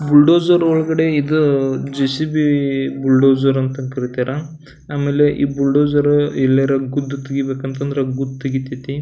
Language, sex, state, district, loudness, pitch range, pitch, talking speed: Kannada, male, Karnataka, Belgaum, -17 LUFS, 135-145 Hz, 140 Hz, 120 wpm